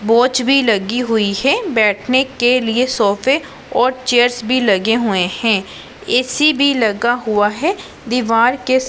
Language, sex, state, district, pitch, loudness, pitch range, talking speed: Hindi, female, Punjab, Pathankot, 240 Hz, -15 LUFS, 220-260 Hz, 140 wpm